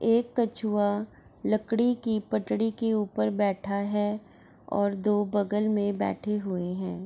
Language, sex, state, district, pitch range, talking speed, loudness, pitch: Hindi, female, Bihar, Gopalganj, 200-220 Hz, 145 wpm, -28 LUFS, 210 Hz